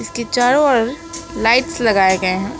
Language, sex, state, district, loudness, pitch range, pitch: Hindi, female, West Bengal, Alipurduar, -15 LUFS, 210-285 Hz, 245 Hz